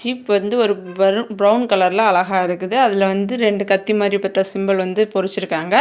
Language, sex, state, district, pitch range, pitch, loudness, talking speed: Tamil, female, Tamil Nadu, Kanyakumari, 190-215 Hz, 200 Hz, -17 LUFS, 175 wpm